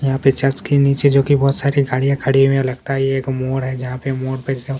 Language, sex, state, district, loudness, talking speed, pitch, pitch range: Hindi, male, Chhattisgarh, Kabirdham, -17 LUFS, 275 wpm, 135 Hz, 130-140 Hz